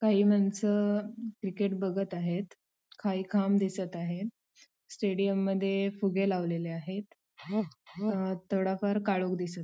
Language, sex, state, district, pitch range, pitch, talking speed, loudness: Marathi, female, Maharashtra, Sindhudurg, 190-205 Hz, 195 Hz, 120 wpm, -31 LUFS